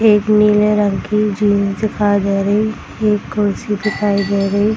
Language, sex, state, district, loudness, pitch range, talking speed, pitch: Hindi, female, Bihar, Darbhanga, -15 LUFS, 200-210 Hz, 165 wpm, 210 Hz